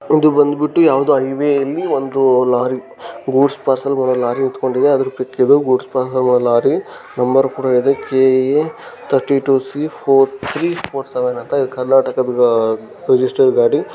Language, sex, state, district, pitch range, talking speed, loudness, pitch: Kannada, male, Karnataka, Gulbarga, 130-140 Hz, 160 wpm, -15 LUFS, 135 Hz